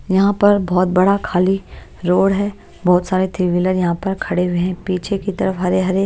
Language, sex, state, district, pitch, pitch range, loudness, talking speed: Hindi, female, Punjab, Kapurthala, 185 Hz, 180-195 Hz, -17 LUFS, 200 wpm